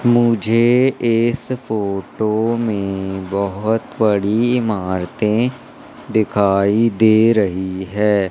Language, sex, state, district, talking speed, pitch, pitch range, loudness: Hindi, male, Madhya Pradesh, Katni, 80 wpm, 110 Hz, 100-115 Hz, -17 LUFS